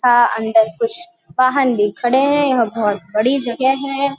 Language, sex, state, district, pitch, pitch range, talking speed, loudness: Hindi, female, Uttar Pradesh, Varanasi, 255 Hz, 230-280 Hz, 170 wpm, -16 LUFS